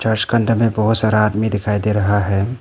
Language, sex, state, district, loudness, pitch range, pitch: Hindi, male, Arunachal Pradesh, Papum Pare, -16 LUFS, 105-110 Hz, 110 Hz